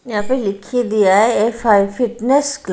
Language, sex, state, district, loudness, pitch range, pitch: Hindi, female, Haryana, Rohtak, -16 LUFS, 205-250 Hz, 225 Hz